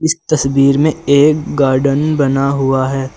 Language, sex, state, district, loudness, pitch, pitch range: Hindi, male, Uttar Pradesh, Lucknow, -13 LUFS, 140 Hz, 135-155 Hz